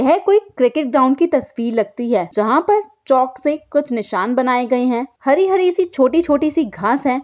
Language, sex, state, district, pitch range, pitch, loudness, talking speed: Hindi, female, Bihar, Saran, 245-325 Hz, 270 Hz, -17 LUFS, 190 wpm